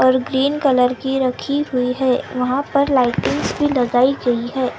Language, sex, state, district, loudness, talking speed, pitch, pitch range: Hindi, female, Maharashtra, Gondia, -18 LUFS, 175 wpm, 260 Hz, 250-275 Hz